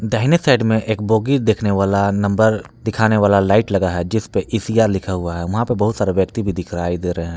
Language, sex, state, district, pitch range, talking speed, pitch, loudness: Hindi, male, Jharkhand, Palamu, 95-110 Hz, 235 wpm, 105 Hz, -17 LUFS